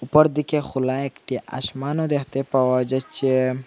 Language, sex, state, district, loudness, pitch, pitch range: Bengali, male, Assam, Hailakandi, -22 LUFS, 135 Hz, 130-145 Hz